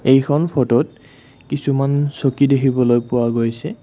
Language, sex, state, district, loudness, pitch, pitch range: Assamese, male, Assam, Kamrup Metropolitan, -17 LUFS, 135 Hz, 125-140 Hz